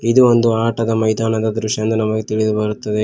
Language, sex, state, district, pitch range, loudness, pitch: Kannada, male, Karnataka, Koppal, 110-115 Hz, -17 LUFS, 110 Hz